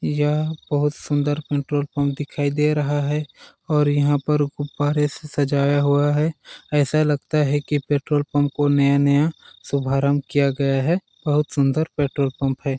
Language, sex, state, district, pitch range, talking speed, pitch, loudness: Hindi, male, Chhattisgarh, Balrampur, 140-150 Hz, 175 wpm, 145 Hz, -21 LUFS